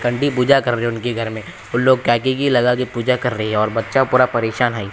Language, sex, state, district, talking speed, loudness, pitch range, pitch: Hindi, male, Bihar, Samastipur, 255 wpm, -17 LUFS, 115-125 Hz, 120 Hz